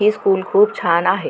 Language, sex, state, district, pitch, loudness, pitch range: Marathi, female, Maharashtra, Pune, 195 Hz, -16 LUFS, 185-210 Hz